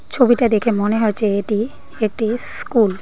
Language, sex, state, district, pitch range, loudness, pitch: Bengali, female, Tripura, Dhalai, 210-240 Hz, -17 LUFS, 220 Hz